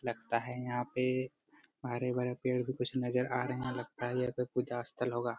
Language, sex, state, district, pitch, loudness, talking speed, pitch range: Hindi, male, Jharkhand, Jamtara, 125 Hz, -36 LUFS, 220 wpm, 120-125 Hz